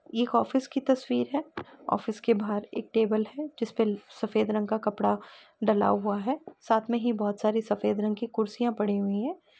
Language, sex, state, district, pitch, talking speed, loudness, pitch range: Hindi, female, Uttar Pradesh, Etah, 225 Hz, 205 wpm, -28 LUFS, 210-240 Hz